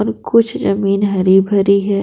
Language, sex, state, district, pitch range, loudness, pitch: Hindi, female, Bihar, Patna, 195-200 Hz, -14 LUFS, 200 Hz